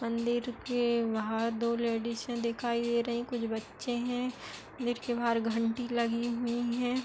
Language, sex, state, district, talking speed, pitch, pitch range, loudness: Hindi, female, Uttar Pradesh, Etah, 155 wpm, 235 Hz, 230-240 Hz, -32 LUFS